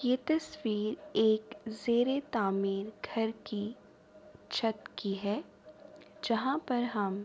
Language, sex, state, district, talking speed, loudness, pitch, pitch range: Urdu, female, Andhra Pradesh, Anantapur, 110 wpm, -33 LUFS, 225 Hz, 210-265 Hz